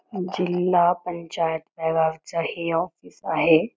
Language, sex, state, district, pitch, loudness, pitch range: Marathi, female, Karnataka, Belgaum, 170 Hz, -24 LUFS, 160-180 Hz